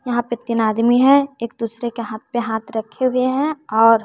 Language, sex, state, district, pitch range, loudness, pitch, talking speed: Hindi, female, Bihar, West Champaran, 225-255 Hz, -19 LUFS, 235 Hz, 220 wpm